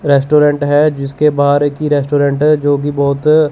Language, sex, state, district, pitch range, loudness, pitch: Hindi, male, Chandigarh, Chandigarh, 140-150 Hz, -12 LUFS, 145 Hz